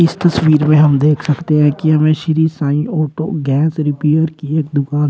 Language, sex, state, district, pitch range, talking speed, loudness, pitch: Hindi, male, Uttar Pradesh, Shamli, 150-160 Hz, 200 wpm, -14 LUFS, 155 Hz